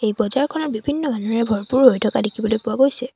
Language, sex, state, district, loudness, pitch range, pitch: Assamese, female, Assam, Sonitpur, -19 LUFS, 220-270 Hz, 230 Hz